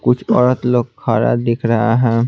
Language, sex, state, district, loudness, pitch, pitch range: Hindi, male, Bihar, Patna, -15 LUFS, 120 Hz, 115-125 Hz